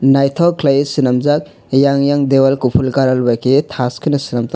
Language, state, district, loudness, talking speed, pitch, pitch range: Kokborok, Tripura, West Tripura, -14 LUFS, 195 wpm, 135 Hz, 130-145 Hz